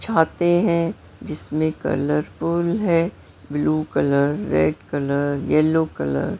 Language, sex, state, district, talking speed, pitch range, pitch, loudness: Hindi, female, Maharashtra, Mumbai Suburban, 105 wpm, 140-170 Hz, 155 Hz, -21 LUFS